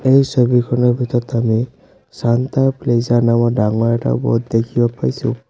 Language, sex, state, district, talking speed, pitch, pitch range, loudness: Assamese, male, Assam, Sonitpur, 130 wpm, 120 Hz, 115-125 Hz, -16 LUFS